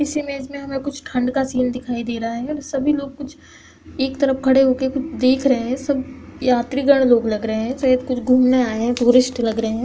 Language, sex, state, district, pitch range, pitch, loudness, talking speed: Hindi, female, Bihar, Samastipur, 245-275 Hz, 260 Hz, -19 LUFS, 235 wpm